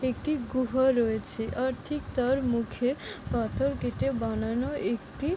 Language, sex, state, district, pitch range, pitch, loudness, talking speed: Bengali, female, West Bengal, Jalpaiguri, 235-265 Hz, 255 Hz, -29 LUFS, 135 wpm